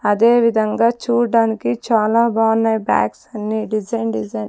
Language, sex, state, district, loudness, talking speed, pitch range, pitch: Telugu, female, Andhra Pradesh, Sri Satya Sai, -17 LUFS, 120 wpm, 215-230 Hz, 225 Hz